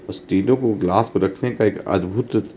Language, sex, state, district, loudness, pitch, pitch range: Hindi, male, Himachal Pradesh, Shimla, -20 LUFS, 105 Hz, 95-120 Hz